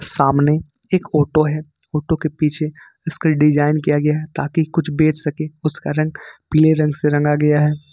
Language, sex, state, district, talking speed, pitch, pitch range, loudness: Hindi, male, Jharkhand, Ranchi, 180 wpm, 155 Hz, 150-155 Hz, -18 LUFS